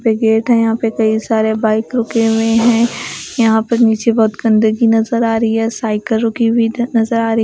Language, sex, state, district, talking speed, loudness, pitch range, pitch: Hindi, female, Bihar, West Champaran, 210 wpm, -14 LUFS, 220-230 Hz, 225 Hz